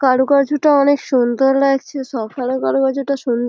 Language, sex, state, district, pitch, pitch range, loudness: Bengali, female, West Bengal, Malda, 270 Hz, 250-280 Hz, -16 LUFS